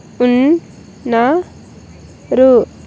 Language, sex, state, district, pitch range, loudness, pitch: Telugu, female, Andhra Pradesh, Sri Satya Sai, 245-310 Hz, -13 LUFS, 255 Hz